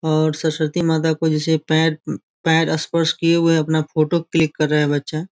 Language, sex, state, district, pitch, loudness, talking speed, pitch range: Hindi, male, Bihar, Gopalganj, 160 Hz, -19 LUFS, 205 wpm, 155-165 Hz